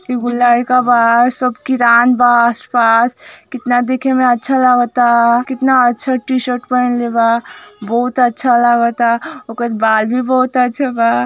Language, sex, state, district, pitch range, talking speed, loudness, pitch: Hindi, female, Uttar Pradesh, Ghazipur, 235-255 Hz, 150 wpm, -13 LUFS, 245 Hz